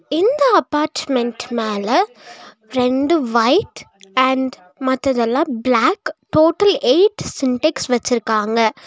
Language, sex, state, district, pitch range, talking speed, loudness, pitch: Tamil, female, Tamil Nadu, Nilgiris, 235-315 Hz, 80 wpm, -17 LUFS, 260 Hz